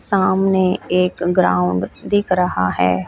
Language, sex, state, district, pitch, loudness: Hindi, female, Haryana, Jhajjar, 180 Hz, -17 LUFS